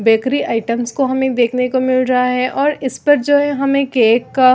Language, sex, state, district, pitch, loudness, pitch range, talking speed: Hindi, female, Chhattisgarh, Raigarh, 255 Hz, -15 LUFS, 240-275 Hz, 210 wpm